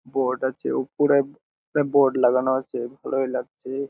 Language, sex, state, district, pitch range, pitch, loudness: Bengali, male, West Bengal, Jhargram, 130-140 Hz, 130 Hz, -23 LUFS